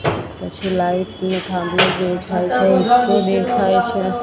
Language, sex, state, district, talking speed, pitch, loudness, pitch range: Gujarati, female, Gujarat, Gandhinagar, 115 wpm, 185 Hz, -17 LUFS, 180-190 Hz